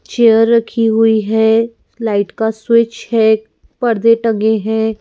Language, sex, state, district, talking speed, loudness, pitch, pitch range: Hindi, female, Madhya Pradesh, Bhopal, 130 wpm, -13 LUFS, 225 Hz, 220-230 Hz